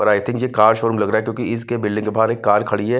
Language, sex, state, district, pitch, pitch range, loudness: Hindi, male, Punjab, Fazilka, 110 Hz, 105-115 Hz, -18 LUFS